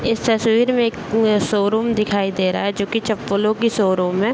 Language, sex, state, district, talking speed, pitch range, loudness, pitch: Hindi, male, Bihar, Bhagalpur, 205 wpm, 200-225 Hz, -18 LUFS, 215 Hz